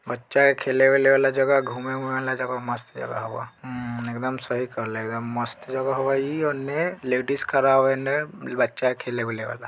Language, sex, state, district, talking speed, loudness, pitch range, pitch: Bajjika, male, Bihar, Vaishali, 155 wpm, -24 LUFS, 125-135 Hz, 130 Hz